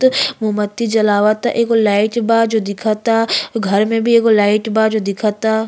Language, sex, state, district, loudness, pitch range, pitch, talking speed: Bhojpuri, female, Uttar Pradesh, Ghazipur, -15 LUFS, 210-230 Hz, 220 Hz, 170 wpm